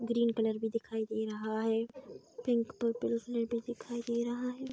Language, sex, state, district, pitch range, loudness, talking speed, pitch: Hindi, female, Bihar, Saharsa, 225-240 Hz, -35 LUFS, 190 wpm, 235 Hz